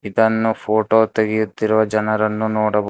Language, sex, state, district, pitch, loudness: Kannada, male, Karnataka, Bangalore, 110 Hz, -18 LUFS